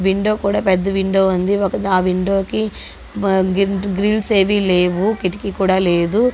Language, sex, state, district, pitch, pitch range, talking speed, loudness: Telugu, female, Andhra Pradesh, Guntur, 195 Hz, 190-205 Hz, 150 wpm, -17 LUFS